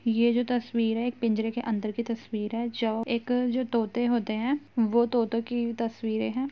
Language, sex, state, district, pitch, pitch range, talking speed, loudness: Hindi, female, Uttar Pradesh, Jyotiba Phule Nagar, 235 Hz, 225-240 Hz, 200 wpm, -28 LUFS